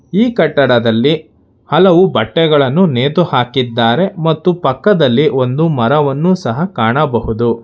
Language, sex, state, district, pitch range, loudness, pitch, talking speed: Kannada, male, Karnataka, Bangalore, 120-175 Hz, -12 LUFS, 145 Hz, 95 wpm